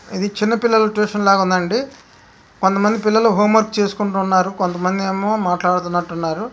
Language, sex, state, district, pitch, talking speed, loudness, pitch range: Telugu, male, Andhra Pradesh, Krishna, 200 Hz, 140 wpm, -17 LUFS, 185-215 Hz